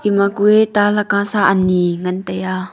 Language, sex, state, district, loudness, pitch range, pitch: Wancho, female, Arunachal Pradesh, Longding, -15 LUFS, 185-210 Hz, 200 Hz